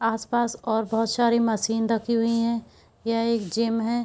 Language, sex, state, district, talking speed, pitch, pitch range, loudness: Hindi, female, Bihar, East Champaran, 180 wpm, 230 Hz, 225-235 Hz, -24 LUFS